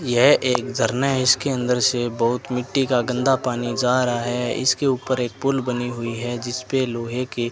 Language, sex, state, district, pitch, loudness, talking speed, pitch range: Hindi, male, Rajasthan, Bikaner, 125 Hz, -21 LUFS, 205 wpm, 120-130 Hz